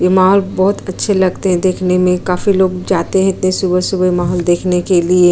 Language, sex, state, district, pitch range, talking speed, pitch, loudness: Hindi, female, Uttar Pradesh, Jyotiba Phule Nagar, 180-190 Hz, 205 wpm, 185 Hz, -14 LUFS